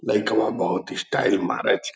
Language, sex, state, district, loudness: Angika, male, Bihar, Purnia, -23 LUFS